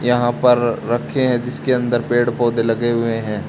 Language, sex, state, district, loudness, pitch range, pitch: Hindi, male, Haryana, Charkhi Dadri, -18 LUFS, 115-125 Hz, 120 Hz